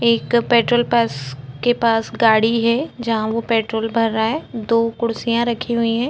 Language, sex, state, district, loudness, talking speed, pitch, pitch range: Hindi, female, Chhattisgarh, Korba, -18 LUFS, 175 wpm, 230 Hz, 225-235 Hz